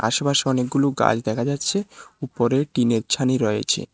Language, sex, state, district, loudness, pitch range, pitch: Bengali, male, Tripura, West Tripura, -21 LUFS, 115-140 Hz, 130 Hz